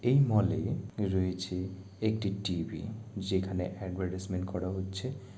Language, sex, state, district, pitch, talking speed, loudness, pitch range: Bengali, male, West Bengal, Jalpaiguri, 95 Hz, 135 wpm, -33 LUFS, 95-110 Hz